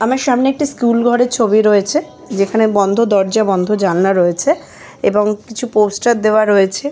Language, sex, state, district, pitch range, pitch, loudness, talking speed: Bengali, female, West Bengal, Jalpaiguri, 200-240 Hz, 215 Hz, -14 LUFS, 165 wpm